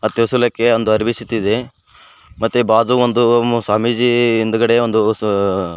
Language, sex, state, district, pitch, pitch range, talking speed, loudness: Kannada, male, Karnataka, Koppal, 115 Hz, 110-120 Hz, 115 wpm, -15 LUFS